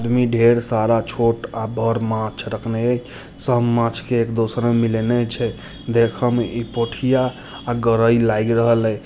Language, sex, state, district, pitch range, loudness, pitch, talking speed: Hindi, male, Bihar, Muzaffarpur, 115-120 Hz, -19 LUFS, 115 Hz, 165 wpm